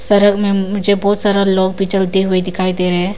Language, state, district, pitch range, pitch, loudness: Hindi, Arunachal Pradesh, Papum Pare, 185-200 Hz, 195 Hz, -14 LUFS